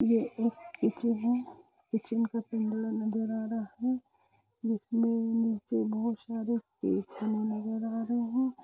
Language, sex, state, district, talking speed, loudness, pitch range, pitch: Hindi, female, Jharkhand, Jamtara, 130 wpm, -32 LUFS, 220-235 Hz, 225 Hz